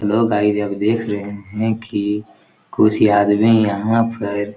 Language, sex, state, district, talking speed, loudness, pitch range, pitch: Hindi, male, Chhattisgarh, Korba, 160 wpm, -17 LUFS, 105-110 Hz, 105 Hz